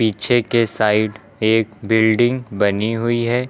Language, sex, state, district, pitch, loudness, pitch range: Hindi, male, Uttar Pradesh, Lucknow, 110 Hz, -18 LUFS, 110-120 Hz